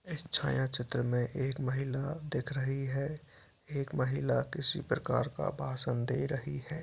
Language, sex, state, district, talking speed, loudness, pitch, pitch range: Hindi, male, Bihar, Purnia, 160 wpm, -34 LUFS, 135 Hz, 130-145 Hz